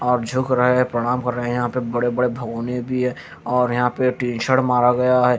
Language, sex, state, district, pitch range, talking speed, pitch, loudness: Hindi, male, Haryana, Jhajjar, 120-125 Hz, 255 wpm, 125 Hz, -20 LUFS